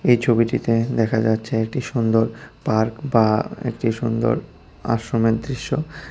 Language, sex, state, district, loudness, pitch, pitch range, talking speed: Bengali, female, Tripura, West Tripura, -21 LUFS, 115 Hz, 110-125 Hz, 120 wpm